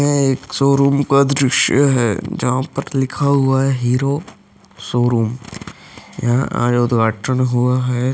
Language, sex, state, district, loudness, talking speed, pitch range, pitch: Hindi, male, Uttar Pradesh, Hamirpur, -16 LUFS, 120 wpm, 120-140 Hz, 130 Hz